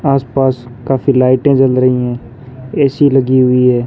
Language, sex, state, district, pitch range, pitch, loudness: Hindi, male, Rajasthan, Bikaner, 125-135 Hz, 130 Hz, -12 LUFS